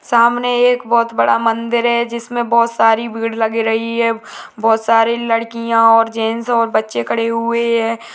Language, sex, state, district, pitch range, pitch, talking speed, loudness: Hindi, female, Uttarakhand, Tehri Garhwal, 225-235 Hz, 230 Hz, 170 wpm, -15 LUFS